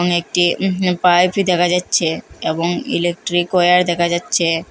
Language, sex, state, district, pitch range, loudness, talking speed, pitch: Bengali, female, Assam, Hailakandi, 175-180 Hz, -16 LUFS, 140 wpm, 175 Hz